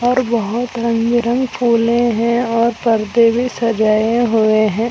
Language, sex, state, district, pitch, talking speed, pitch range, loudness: Hindi, female, Chhattisgarh, Rajnandgaon, 235 Hz, 145 wpm, 225-240 Hz, -15 LUFS